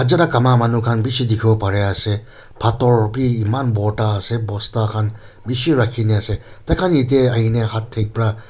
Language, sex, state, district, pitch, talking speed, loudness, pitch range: Nagamese, male, Nagaland, Kohima, 115 Hz, 190 wpm, -17 LUFS, 105-125 Hz